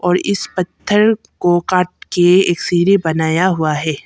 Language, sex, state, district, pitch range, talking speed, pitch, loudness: Hindi, female, Arunachal Pradesh, Papum Pare, 160-185 Hz, 160 wpm, 180 Hz, -15 LUFS